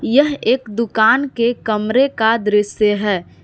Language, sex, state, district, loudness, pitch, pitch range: Hindi, female, Jharkhand, Palamu, -16 LUFS, 225 Hz, 210-245 Hz